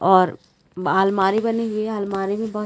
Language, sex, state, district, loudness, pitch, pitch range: Hindi, female, Chhattisgarh, Rajnandgaon, -21 LUFS, 200 Hz, 190-215 Hz